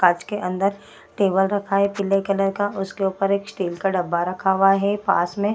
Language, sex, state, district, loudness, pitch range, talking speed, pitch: Hindi, female, Bihar, Gaya, -21 LUFS, 190-200 Hz, 250 wpm, 195 Hz